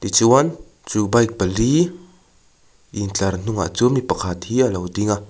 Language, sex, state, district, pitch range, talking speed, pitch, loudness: Mizo, male, Mizoram, Aizawl, 95-130 Hz, 160 wpm, 110 Hz, -19 LUFS